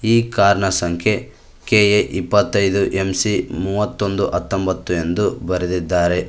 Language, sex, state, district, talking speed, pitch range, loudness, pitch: Kannada, male, Karnataka, Koppal, 105 wpm, 90-105 Hz, -18 LUFS, 95 Hz